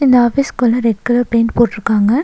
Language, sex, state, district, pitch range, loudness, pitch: Tamil, female, Tamil Nadu, Nilgiris, 230-245 Hz, -14 LUFS, 235 Hz